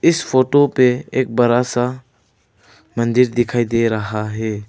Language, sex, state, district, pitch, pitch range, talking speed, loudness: Hindi, male, Arunachal Pradesh, Lower Dibang Valley, 120 Hz, 110-125 Hz, 140 wpm, -17 LUFS